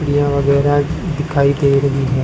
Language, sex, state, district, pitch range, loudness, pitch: Hindi, male, Rajasthan, Bikaner, 140-145 Hz, -15 LUFS, 140 Hz